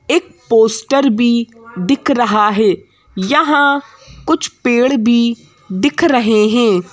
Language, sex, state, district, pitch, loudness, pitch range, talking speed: Hindi, female, Madhya Pradesh, Bhopal, 235 Hz, -14 LUFS, 220-280 Hz, 115 wpm